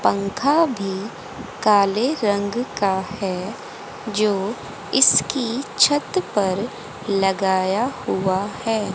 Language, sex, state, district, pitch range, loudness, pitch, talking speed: Hindi, female, Haryana, Jhajjar, 195-245 Hz, -20 LUFS, 210 Hz, 85 wpm